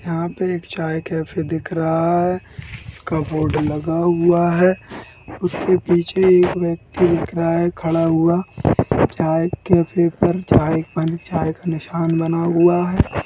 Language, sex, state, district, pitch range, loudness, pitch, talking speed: Hindi, female, Bihar, East Champaran, 160-175 Hz, -18 LUFS, 165 Hz, 150 wpm